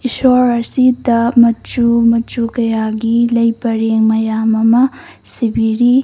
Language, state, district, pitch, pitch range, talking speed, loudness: Manipuri, Manipur, Imphal West, 235 Hz, 225-240 Hz, 100 wpm, -13 LUFS